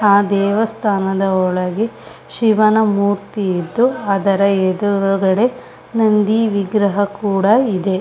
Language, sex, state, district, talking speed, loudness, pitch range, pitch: Kannada, female, Karnataka, Shimoga, 90 wpm, -16 LUFS, 195-215 Hz, 200 Hz